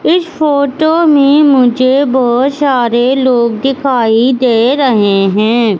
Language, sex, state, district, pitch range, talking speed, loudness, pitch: Hindi, female, Madhya Pradesh, Katni, 235-280 Hz, 115 wpm, -10 LUFS, 260 Hz